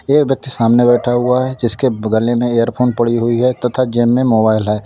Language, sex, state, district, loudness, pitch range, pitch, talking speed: Hindi, male, Uttar Pradesh, Lalitpur, -14 LUFS, 115-125 Hz, 120 Hz, 220 wpm